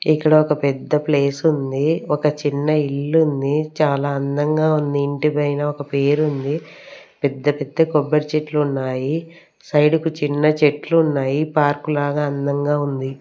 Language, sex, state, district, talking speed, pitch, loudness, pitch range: Telugu, female, Andhra Pradesh, Sri Satya Sai, 135 wpm, 150 Hz, -19 LUFS, 140-155 Hz